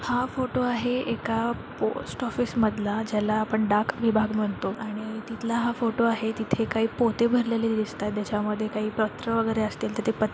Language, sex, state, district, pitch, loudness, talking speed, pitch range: Marathi, female, Maharashtra, Dhule, 225 Hz, -26 LUFS, 185 wpm, 215-235 Hz